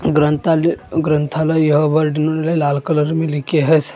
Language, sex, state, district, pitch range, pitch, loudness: Hindi, male, Maharashtra, Gondia, 150-160 Hz, 155 Hz, -16 LUFS